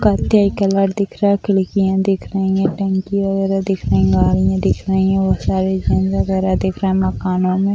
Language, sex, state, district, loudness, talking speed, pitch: Hindi, female, Bihar, Sitamarhi, -17 LUFS, 140 wpm, 190 Hz